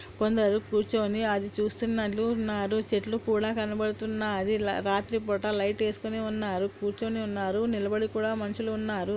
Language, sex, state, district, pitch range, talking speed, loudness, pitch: Telugu, female, Andhra Pradesh, Anantapur, 205-220 Hz, 130 wpm, -29 LUFS, 215 Hz